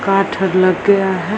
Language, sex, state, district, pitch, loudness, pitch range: Maithili, female, Bihar, Samastipur, 195 Hz, -14 LUFS, 185-195 Hz